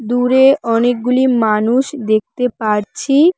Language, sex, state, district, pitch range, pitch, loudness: Bengali, female, West Bengal, Cooch Behar, 225-265 Hz, 245 Hz, -14 LUFS